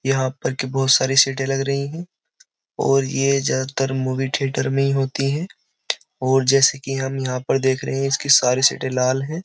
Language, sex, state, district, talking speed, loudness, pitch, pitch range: Hindi, male, Uttar Pradesh, Jyotiba Phule Nagar, 195 wpm, -20 LUFS, 135 Hz, 130-135 Hz